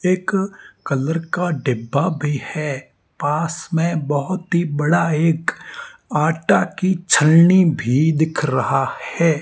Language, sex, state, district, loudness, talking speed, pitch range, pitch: Hindi, male, Rajasthan, Barmer, -18 LUFS, 120 wpm, 150-175 Hz, 160 Hz